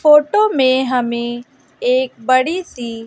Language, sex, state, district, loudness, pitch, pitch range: Hindi, female, Bihar, West Champaran, -16 LUFS, 255 Hz, 240-295 Hz